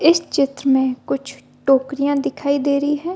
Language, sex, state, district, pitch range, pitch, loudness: Hindi, female, Bihar, Gopalganj, 270-285 Hz, 280 Hz, -19 LUFS